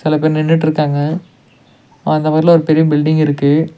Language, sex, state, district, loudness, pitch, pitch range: Tamil, male, Tamil Nadu, Nilgiris, -13 LUFS, 155 Hz, 150-160 Hz